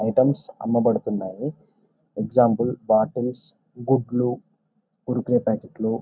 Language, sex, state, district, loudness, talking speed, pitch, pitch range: Telugu, male, Telangana, Nalgonda, -23 LUFS, 80 wpm, 125 Hz, 120-135 Hz